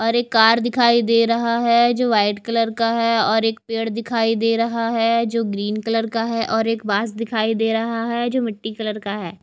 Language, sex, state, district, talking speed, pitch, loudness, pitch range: Hindi, female, Odisha, Khordha, 225 wpm, 230 Hz, -19 LUFS, 225-230 Hz